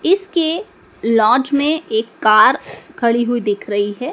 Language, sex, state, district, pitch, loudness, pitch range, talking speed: Hindi, male, Madhya Pradesh, Dhar, 250 Hz, -16 LUFS, 215-335 Hz, 145 wpm